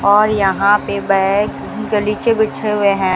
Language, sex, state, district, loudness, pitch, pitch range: Hindi, female, Rajasthan, Bikaner, -15 LUFS, 205 Hz, 195-210 Hz